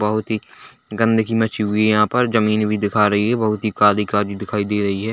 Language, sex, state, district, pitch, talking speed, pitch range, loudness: Hindi, male, Chhattisgarh, Bilaspur, 105 Hz, 235 wpm, 105-110 Hz, -18 LUFS